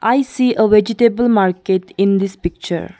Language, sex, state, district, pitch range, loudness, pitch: English, female, Arunachal Pradesh, Longding, 190-235 Hz, -15 LUFS, 210 Hz